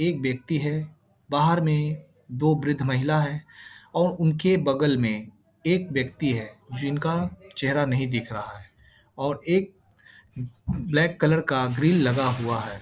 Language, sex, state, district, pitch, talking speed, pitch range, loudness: Hindi, male, Bihar, Bhagalpur, 145 Hz, 145 wpm, 125-160 Hz, -25 LUFS